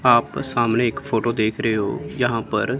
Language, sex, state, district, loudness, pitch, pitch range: Hindi, female, Chandigarh, Chandigarh, -21 LUFS, 115 Hz, 110-120 Hz